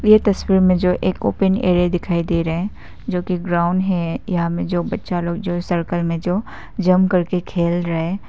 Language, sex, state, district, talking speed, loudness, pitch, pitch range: Hindi, female, Nagaland, Kohima, 210 wpm, -19 LUFS, 180 Hz, 170-185 Hz